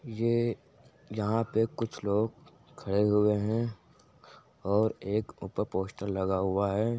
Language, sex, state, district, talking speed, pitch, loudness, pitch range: Hindi, male, Uttar Pradesh, Jyotiba Phule Nagar, 130 wpm, 110 Hz, -30 LUFS, 100-115 Hz